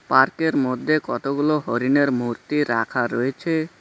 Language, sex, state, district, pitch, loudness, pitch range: Bengali, male, West Bengal, Cooch Behar, 135 Hz, -21 LUFS, 120-150 Hz